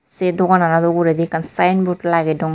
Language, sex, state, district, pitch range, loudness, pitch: Chakma, female, Tripura, Unakoti, 165-180 Hz, -16 LUFS, 170 Hz